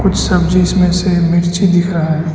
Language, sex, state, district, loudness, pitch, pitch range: Hindi, male, Arunachal Pradesh, Lower Dibang Valley, -13 LUFS, 175 Hz, 170-185 Hz